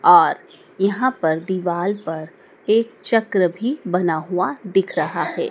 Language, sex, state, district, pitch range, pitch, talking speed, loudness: Hindi, female, Madhya Pradesh, Dhar, 180-240 Hz, 195 Hz, 140 wpm, -20 LUFS